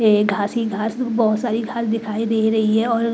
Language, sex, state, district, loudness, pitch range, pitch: Hindi, female, Bihar, West Champaran, -20 LUFS, 215-230 Hz, 225 Hz